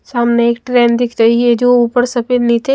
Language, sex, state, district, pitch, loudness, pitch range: Hindi, female, Maharashtra, Mumbai Suburban, 240 Hz, -12 LUFS, 235-245 Hz